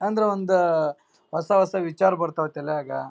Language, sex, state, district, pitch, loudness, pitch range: Kannada, male, Karnataka, Raichur, 170 Hz, -23 LUFS, 155-190 Hz